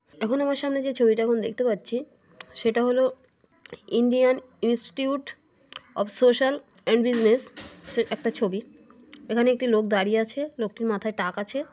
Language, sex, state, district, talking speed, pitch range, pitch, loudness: Bengali, female, West Bengal, North 24 Parganas, 145 wpm, 220-260 Hz, 240 Hz, -25 LUFS